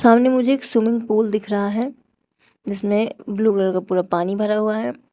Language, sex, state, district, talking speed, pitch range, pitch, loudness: Hindi, female, Uttar Pradesh, Shamli, 200 wpm, 205-235 Hz, 215 Hz, -20 LUFS